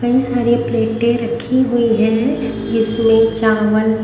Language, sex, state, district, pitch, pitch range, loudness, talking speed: Hindi, female, Haryana, Rohtak, 230 Hz, 225-240 Hz, -15 LUFS, 120 wpm